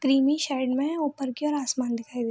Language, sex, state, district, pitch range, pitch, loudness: Hindi, female, Bihar, Begusarai, 255-290 Hz, 270 Hz, -26 LUFS